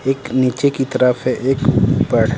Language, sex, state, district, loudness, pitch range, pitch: Hindi, male, Bihar, Patna, -16 LUFS, 125-135 Hz, 130 Hz